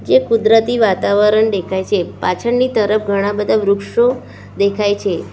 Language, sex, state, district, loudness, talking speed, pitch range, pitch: Gujarati, female, Gujarat, Valsad, -15 LUFS, 135 wpm, 200-225 Hz, 210 Hz